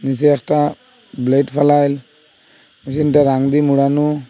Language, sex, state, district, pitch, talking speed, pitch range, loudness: Bengali, male, Assam, Hailakandi, 145 Hz, 110 wpm, 140-150 Hz, -15 LUFS